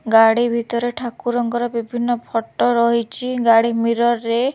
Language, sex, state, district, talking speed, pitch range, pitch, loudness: Odia, female, Odisha, Khordha, 120 wpm, 230-240 Hz, 235 Hz, -18 LUFS